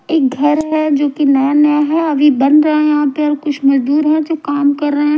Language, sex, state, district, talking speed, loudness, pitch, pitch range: Hindi, female, Himachal Pradesh, Shimla, 255 wpm, -13 LUFS, 295 Hz, 285-305 Hz